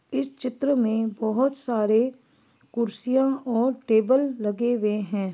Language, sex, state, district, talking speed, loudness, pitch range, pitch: Hindi, female, Chhattisgarh, Bastar, 125 wpm, -24 LUFS, 220-265 Hz, 240 Hz